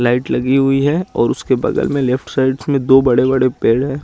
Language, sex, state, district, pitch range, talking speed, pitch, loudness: Hindi, male, Chandigarh, Chandigarh, 125-135 Hz, 240 wpm, 135 Hz, -15 LUFS